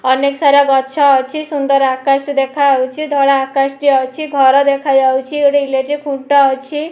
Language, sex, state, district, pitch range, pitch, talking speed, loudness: Odia, female, Odisha, Nuapada, 270-285 Hz, 275 Hz, 155 wpm, -13 LUFS